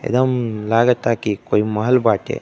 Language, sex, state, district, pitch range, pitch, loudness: Bhojpuri, male, Uttar Pradesh, Deoria, 105-125 Hz, 115 Hz, -18 LUFS